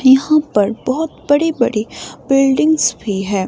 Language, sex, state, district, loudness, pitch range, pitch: Hindi, female, Himachal Pradesh, Shimla, -15 LUFS, 215-300 Hz, 270 Hz